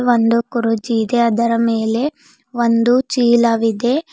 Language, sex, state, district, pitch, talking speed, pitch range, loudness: Kannada, female, Karnataka, Bidar, 235 Hz, 100 wpm, 230-245 Hz, -16 LUFS